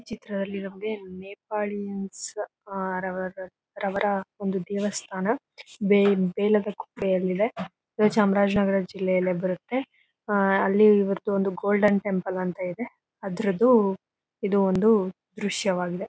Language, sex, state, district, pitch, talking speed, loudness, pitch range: Kannada, female, Karnataka, Chamarajanagar, 200 Hz, 110 wpm, -25 LUFS, 190-210 Hz